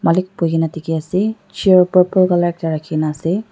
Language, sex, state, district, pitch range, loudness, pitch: Nagamese, female, Nagaland, Dimapur, 165-185 Hz, -16 LUFS, 175 Hz